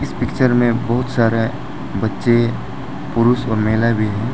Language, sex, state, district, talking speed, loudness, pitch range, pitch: Hindi, male, Arunachal Pradesh, Lower Dibang Valley, 140 wpm, -17 LUFS, 115-120 Hz, 115 Hz